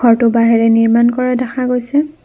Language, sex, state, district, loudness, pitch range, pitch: Assamese, female, Assam, Kamrup Metropolitan, -13 LUFS, 230-250 Hz, 240 Hz